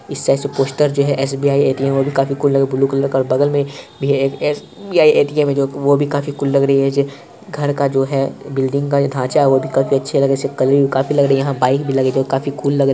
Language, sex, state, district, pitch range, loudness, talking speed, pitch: Hindi, male, Bihar, Purnia, 135-140 Hz, -16 LUFS, 295 wpm, 140 Hz